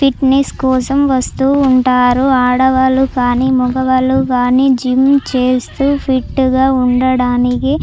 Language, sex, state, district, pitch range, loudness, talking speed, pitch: Telugu, female, Andhra Pradesh, Chittoor, 255-270 Hz, -12 LUFS, 90 wpm, 260 Hz